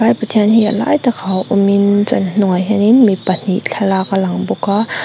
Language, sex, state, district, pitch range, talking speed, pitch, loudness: Mizo, female, Mizoram, Aizawl, 190-225 Hz, 215 wpm, 205 Hz, -14 LUFS